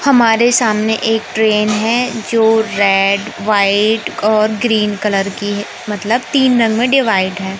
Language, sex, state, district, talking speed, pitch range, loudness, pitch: Hindi, male, Madhya Pradesh, Katni, 150 wpm, 205-230 Hz, -14 LUFS, 220 Hz